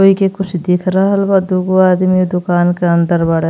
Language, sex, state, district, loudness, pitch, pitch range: Bhojpuri, female, Uttar Pradesh, Ghazipur, -13 LUFS, 185 Hz, 175-190 Hz